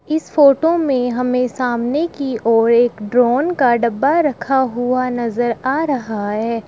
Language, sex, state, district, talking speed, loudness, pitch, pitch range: Hindi, male, Uttar Pradesh, Shamli, 150 wpm, -16 LUFS, 250 Hz, 235-280 Hz